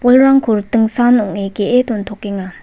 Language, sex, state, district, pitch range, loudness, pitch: Garo, female, Meghalaya, West Garo Hills, 205-245 Hz, -14 LUFS, 220 Hz